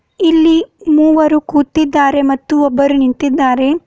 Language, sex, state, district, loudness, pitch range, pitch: Kannada, female, Karnataka, Bidar, -12 LUFS, 280-315 Hz, 295 Hz